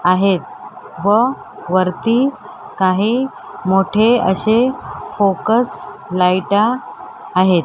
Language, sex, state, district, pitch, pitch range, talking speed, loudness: Marathi, female, Maharashtra, Mumbai Suburban, 200 Hz, 185-230 Hz, 70 wpm, -16 LUFS